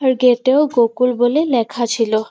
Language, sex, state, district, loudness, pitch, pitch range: Bengali, female, West Bengal, Purulia, -16 LUFS, 245 Hz, 235-260 Hz